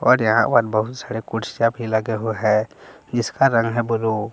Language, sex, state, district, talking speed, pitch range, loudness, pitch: Hindi, male, Jharkhand, Palamu, 210 wpm, 110-120 Hz, -20 LUFS, 115 Hz